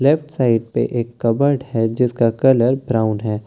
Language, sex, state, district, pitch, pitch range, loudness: Hindi, male, Bihar, Katihar, 120 Hz, 115-135 Hz, -18 LUFS